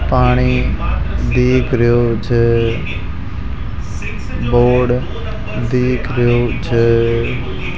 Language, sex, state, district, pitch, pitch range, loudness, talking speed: Hindi, male, Rajasthan, Jaipur, 120 Hz, 115-125 Hz, -16 LUFS, 70 wpm